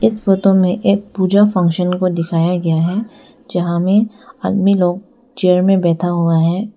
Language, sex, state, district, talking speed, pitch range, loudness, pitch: Hindi, female, Arunachal Pradesh, Lower Dibang Valley, 170 wpm, 175-205 Hz, -15 LUFS, 185 Hz